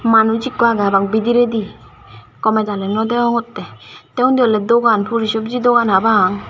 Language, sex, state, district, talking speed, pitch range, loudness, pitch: Chakma, female, Tripura, Dhalai, 175 wpm, 215-235 Hz, -15 LUFS, 225 Hz